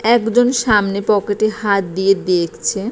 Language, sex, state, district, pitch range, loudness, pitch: Bengali, female, West Bengal, Purulia, 195-220 Hz, -16 LUFS, 205 Hz